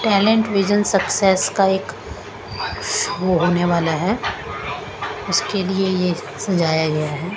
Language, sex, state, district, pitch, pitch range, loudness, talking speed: Hindi, female, Punjab, Kapurthala, 190 Hz, 170-200 Hz, -19 LUFS, 120 wpm